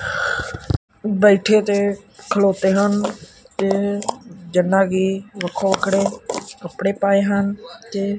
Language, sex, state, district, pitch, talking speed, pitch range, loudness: Punjabi, male, Punjab, Kapurthala, 200 Hz, 95 wpm, 195-205 Hz, -19 LUFS